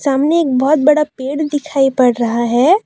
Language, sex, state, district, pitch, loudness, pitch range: Hindi, female, Jharkhand, Deoghar, 280 Hz, -14 LUFS, 260-300 Hz